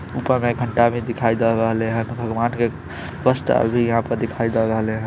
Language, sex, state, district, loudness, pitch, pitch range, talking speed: Maithili, male, Bihar, Samastipur, -20 LUFS, 115 Hz, 115-120 Hz, 235 wpm